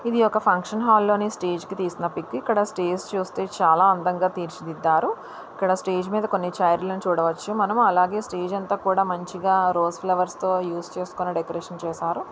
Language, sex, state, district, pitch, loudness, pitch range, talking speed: Telugu, female, Telangana, Karimnagar, 185 Hz, -23 LUFS, 175-200 Hz, 185 wpm